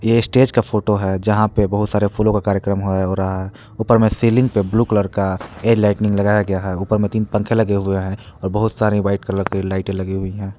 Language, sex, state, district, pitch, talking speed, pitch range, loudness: Hindi, male, Jharkhand, Palamu, 105 Hz, 250 wpm, 95-110 Hz, -18 LUFS